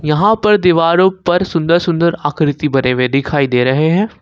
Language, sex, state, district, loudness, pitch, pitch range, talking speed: Hindi, male, Jharkhand, Ranchi, -13 LUFS, 165 Hz, 145-180 Hz, 185 wpm